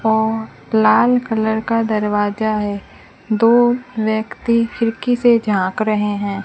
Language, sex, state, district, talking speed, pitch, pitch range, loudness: Hindi, female, Rajasthan, Bikaner, 120 wpm, 220 Hz, 210-230 Hz, -17 LUFS